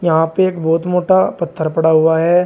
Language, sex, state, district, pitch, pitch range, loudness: Hindi, male, Uttar Pradesh, Shamli, 165 Hz, 160-180 Hz, -14 LUFS